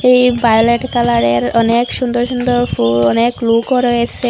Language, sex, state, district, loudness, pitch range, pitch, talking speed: Bengali, female, Assam, Hailakandi, -13 LUFS, 230-245 Hz, 240 Hz, 140 wpm